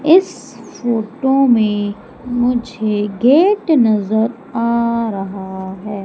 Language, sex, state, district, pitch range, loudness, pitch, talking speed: Hindi, female, Madhya Pradesh, Umaria, 205-250 Hz, -16 LUFS, 230 Hz, 90 wpm